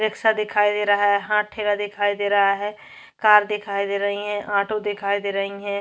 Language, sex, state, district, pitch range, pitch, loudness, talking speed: Hindi, female, Chhattisgarh, Jashpur, 200-210 Hz, 205 Hz, -21 LUFS, 205 wpm